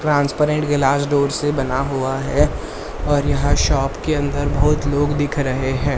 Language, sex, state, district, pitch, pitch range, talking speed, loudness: Hindi, male, Maharashtra, Mumbai Suburban, 145 Hz, 135-145 Hz, 170 wpm, -19 LUFS